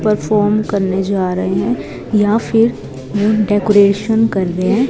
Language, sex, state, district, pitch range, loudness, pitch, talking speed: Hindi, female, Himachal Pradesh, Shimla, 195-215 Hz, -15 LUFS, 205 Hz, 135 wpm